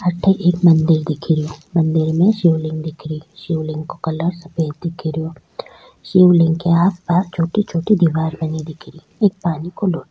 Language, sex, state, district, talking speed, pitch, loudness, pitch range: Rajasthani, female, Rajasthan, Churu, 205 wpm, 165 Hz, -17 LUFS, 160-175 Hz